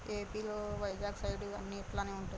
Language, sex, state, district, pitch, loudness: Telugu, female, Andhra Pradesh, Guntur, 145 Hz, -40 LUFS